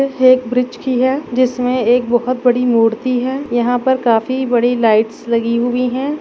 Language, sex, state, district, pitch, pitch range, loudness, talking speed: Hindi, female, Maharashtra, Dhule, 250 Hz, 240-255 Hz, -15 LUFS, 195 wpm